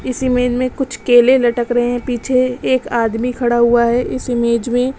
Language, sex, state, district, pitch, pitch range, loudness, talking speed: Hindi, female, Uttar Pradesh, Lalitpur, 245 Hz, 240-255 Hz, -15 LUFS, 205 wpm